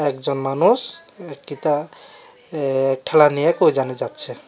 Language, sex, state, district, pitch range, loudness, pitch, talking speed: Bengali, male, Tripura, West Tripura, 135-160 Hz, -19 LUFS, 145 Hz, 95 wpm